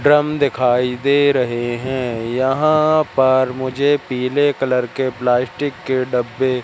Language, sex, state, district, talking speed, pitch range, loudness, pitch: Hindi, male, Madhya Pradesh, Katni, 125 wpm, 125-140 Hz, -17 LUFS, 130 Hz